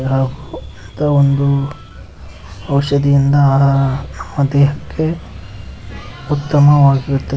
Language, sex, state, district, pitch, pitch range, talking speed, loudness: Kannada, male, Karnataka, Koppal, 140 Hz, 105-140 Hz, 50 wpm, -14 LUFS